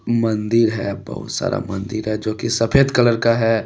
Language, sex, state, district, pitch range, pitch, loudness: Hindi, male, Jharkhand, Deoghar, 110-115 Hz, 115 Hz, -19 LUFS